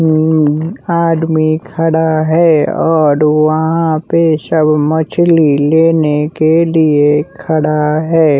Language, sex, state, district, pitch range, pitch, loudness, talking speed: Hindi, male, Bihar, West Champaran, 155-165 Hz, 160 Hz, -11 LUFS, 95 wpm